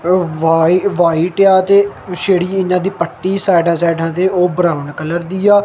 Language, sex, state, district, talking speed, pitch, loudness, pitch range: Punjabi, male, Punjab, Kapurthala, 170 wpm, 180 Hz, -14 LUFS, 170-190 Hz